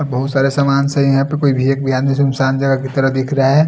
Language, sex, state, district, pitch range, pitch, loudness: Hindi, male, Delhi, New Delhi, 135-140 Hz, 135 Hz, -15 LUFS